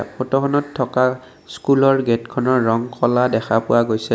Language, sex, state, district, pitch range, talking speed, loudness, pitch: Assamese, male, Assam, Kamrup Metropolitan, 115-130 Hz, 130 wpm, -18 LUFS, 125 Hz